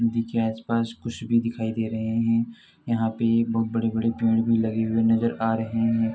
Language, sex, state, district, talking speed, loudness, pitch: Hindi, male, Uttar Pradesh, Etah, 215 wpm, -24 LUFS, 115 Hz